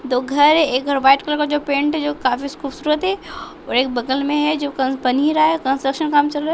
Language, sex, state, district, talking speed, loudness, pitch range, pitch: Hindi, male, Bihar, West Champaran, 275 wpm, -18 LUFS, 270-300 Hz, 285 Hz